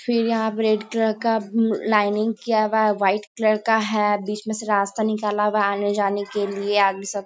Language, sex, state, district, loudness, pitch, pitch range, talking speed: Hindi, female, Bihar, Sitamarhi, -21 LUFS, 215 Hz, 205-220 Hz, 215 wpm